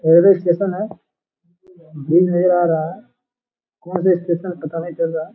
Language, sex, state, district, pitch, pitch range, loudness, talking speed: Hindi, male, Bihar, Jamui, 175 Hz, 165-185 Hz, -18 LUFS, 180 wpm